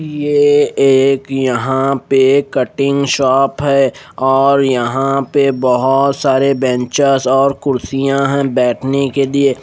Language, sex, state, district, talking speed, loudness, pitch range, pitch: Hindi, male, Chandigarh, Chandigarh, 120 wpm, -13 LUFS, 130-140 Hz, 135 Hz